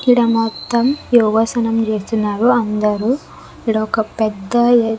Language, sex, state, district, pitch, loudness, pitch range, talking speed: Telugu, female, Andhra Pradesh, Sri Satya Sai, 225 Hz, -16 LUFS, 220-240 Hz, 120 wpm